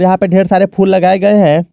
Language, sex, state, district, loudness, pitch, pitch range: Hindi, male, Jharkhand, Garhwa, -10 LUFS, 190 Hz, 185-195 Hz